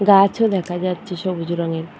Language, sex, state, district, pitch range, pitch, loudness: Bengali, female, West Bengal, Purulia, 170-195 Hz, 180 Hz, -20 LUFS